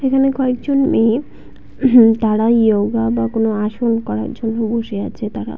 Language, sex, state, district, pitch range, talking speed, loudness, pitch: Bengali, female, West Bengal, Purulia, 215-250 Hz, 140 wpm, -16 LUFS, 225 Hz